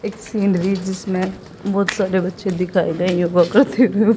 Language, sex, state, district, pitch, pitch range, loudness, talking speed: Hindi, female, Haryana, Jhajjar, 190 Hz, 180-210 Hz, -19 LUFS, 115 wpm